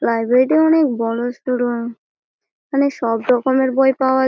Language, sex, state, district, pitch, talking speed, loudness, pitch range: Bengali, female, West Bengal, Malda, 255 Hz, 110 wpm, -17 LUFS, 240-270 Hz